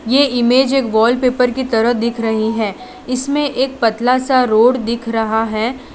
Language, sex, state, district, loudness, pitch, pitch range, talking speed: Hindi, female, Gujarat, Valsad, -15 LUFS, 245 Hz, 225-255 Hz, 170 wpm